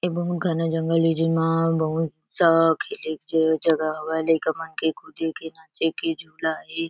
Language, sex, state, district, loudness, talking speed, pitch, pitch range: Chhattisgarhi, female, Chhattisgarh, Kabirdham, -23 LUFS, 190 wpm, 165 Hz, 160-165 Hz